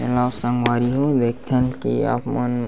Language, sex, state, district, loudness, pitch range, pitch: Chhattisgarhi, male, Chhattisgarh, Bastar, -21 LUFS, 120-125 Hz, 125 Hz